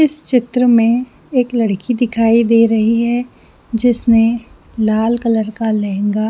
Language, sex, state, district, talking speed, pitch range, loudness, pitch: Hindi, female, Jharkhand, Sahebganj, 145 wpm, 220-245 Hz, -15 LUFS, 230 Hz